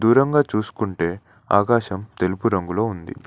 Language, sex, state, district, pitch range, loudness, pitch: Telugu, male, Telangana, Mahabubabad, 95-115 Hz, -21 LUFS, 105 Hz